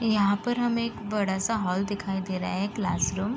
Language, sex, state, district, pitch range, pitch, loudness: Hindi, female, Uttar Pradesh, Gorakhpur, 190-225 Hz, 205 Hz, -27 LUFS